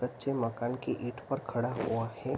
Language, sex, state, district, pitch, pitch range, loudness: Hindi, male, Bihar, Araria, 120 Hz, 115-130 Hz, -34 LUFS